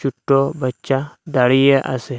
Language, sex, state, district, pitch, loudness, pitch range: Bengali, male, Assam, Hailakandi, 135 Hz, -17 LUFS, 130-140 Hz